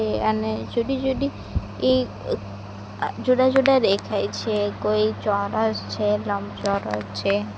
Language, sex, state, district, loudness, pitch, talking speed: Gujarati, female, Gujarat, Valsad, -23 LUFS, 200 Hz, 105 wpm